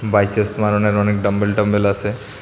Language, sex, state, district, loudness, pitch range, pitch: Bengali, male, Tripura, West Tripura, -18 LUFS, 100-105 Hz, 105 Hz